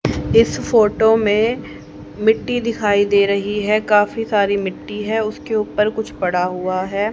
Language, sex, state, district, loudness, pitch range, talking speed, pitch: Hindi, female, Haryana, Rohtak, -17 LUFS, 200-220 Hz, 150 wpm, 210 Hz